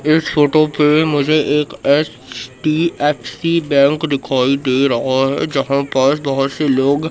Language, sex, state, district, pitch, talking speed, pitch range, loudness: Hindi, male, Madhya Pradesh, Katni, 145 Hz, 135 wpm, 135-155 Hz, -15 LUFS